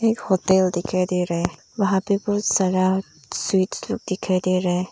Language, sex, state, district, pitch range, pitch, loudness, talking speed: Hindi, female, Arunachal Pradesh, Lower Dibang Valley, 185-200 Hz, 185 Hz, -22 LUFS, 185 wpm